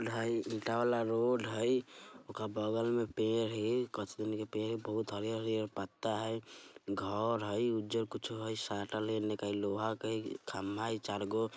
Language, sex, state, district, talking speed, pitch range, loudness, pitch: Bajjika, male, Bihar, Vaishali, 170 wpm, 105-115 Hz, -36 LUFS, 110 Hz